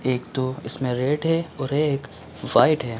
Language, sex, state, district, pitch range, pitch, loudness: Hindi, male, Chhattisgarh, Bilaspur, 125-150 Hz, 135 Hz, -23 LUFS